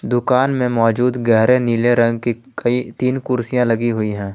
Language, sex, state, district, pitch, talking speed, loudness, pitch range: Hindi, male, Jharkhand, Palamu, 120 Hz, 180 wpm, -17 LUFS, 115-125 Hz